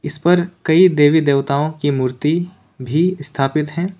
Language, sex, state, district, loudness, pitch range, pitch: Hindi, male, Jharkhand, Ranchi, -16 LUFS, 140-175 Hz, 150 Hz